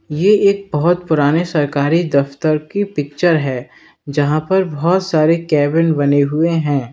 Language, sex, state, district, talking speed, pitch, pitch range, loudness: Hindi, male, Uttar Pradesh, Lalitpur, 145 wpm, 155 Hz, 145-170 Hz, -15 LUFS